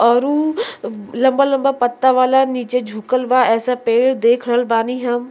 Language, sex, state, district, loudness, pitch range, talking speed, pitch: Bhojpuri, female, Uttar Pradesh, Deoria, -16 LUFS, 240-265 Hz, 160 wpm, 250 Hz